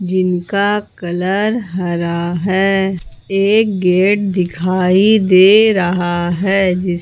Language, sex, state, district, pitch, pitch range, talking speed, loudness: Hindi, female, Jharkhand, Ranchi, 185 Hz, 175-200 Hz, 95 wpm, -14 LUFS